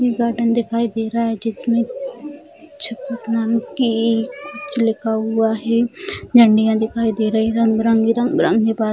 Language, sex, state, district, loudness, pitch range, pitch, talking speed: Hindi, female, Bihar, Jamui, -18 LUFS, 225-245 Hz, 230 Hz, 140 wpm